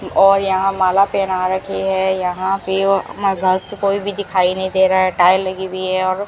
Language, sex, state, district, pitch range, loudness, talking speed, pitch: Hindi, female, Rajasthan, Bikaner, 185-195 Hz, -17 LUFS, 210 wpm, 190 Hz